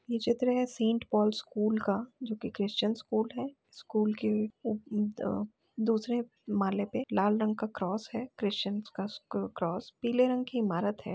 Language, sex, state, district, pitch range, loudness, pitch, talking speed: Hindi, female, Uttar Pradesh, Jalaun, 205-235 Hz, -32 LUFS, 215 Hz, 170 wpm